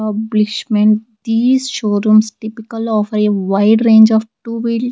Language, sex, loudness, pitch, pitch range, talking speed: English, female, -14 LUFS, 220 Hz, 215-225 Hz, 135 wpm